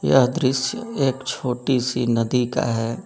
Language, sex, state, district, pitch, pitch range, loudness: Hindi, male, Jharkhand, Garhwa, 125 Hz, 120-135 Hz, -21 LUFS